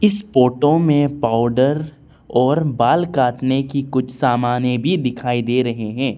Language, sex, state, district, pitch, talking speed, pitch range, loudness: Hindi, male, Arunachal Pradesh, Lower Dibang Valley, 130 Hz, 145 wpm, 125-145 Hz, -18 LUFS